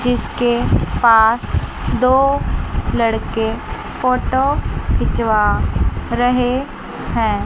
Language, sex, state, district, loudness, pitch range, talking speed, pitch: Hindi, male, Chandigarh, Chandigarh, -17 LUFS, 225-255 Hz, 65 wpm, 245 Hz